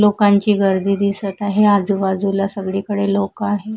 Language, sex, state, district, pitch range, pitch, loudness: Marathi, female, Maharashtra, Mumbai Suburban, 195-205 Hz, 200 Hz, -17 LUFS